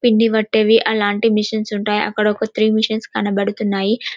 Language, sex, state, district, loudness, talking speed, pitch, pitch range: Telugu, female, Telangana, Karimnagar, -17 LUFS, 170 wpm, 215 Hz, 210-220 Hz